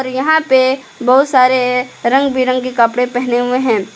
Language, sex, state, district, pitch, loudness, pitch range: Hindi, female, Jharkhand, Palamu, 255 Hz, -13 LUFS, 245-260 Hz